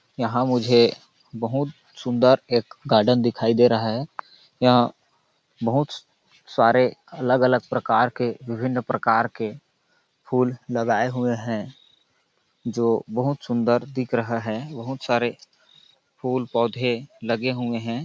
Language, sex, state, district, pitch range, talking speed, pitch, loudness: Hindi, male, Chhattisgarh, Balrampur, 115-130 Hz, 115 wpm, 120 Hz, -23 LUFS